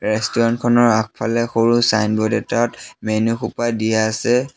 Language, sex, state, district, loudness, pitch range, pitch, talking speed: Assamese, male, Assam, Sonitpur, -18 LUFS, 110-120 Hz, 115 Hz, 130 wpm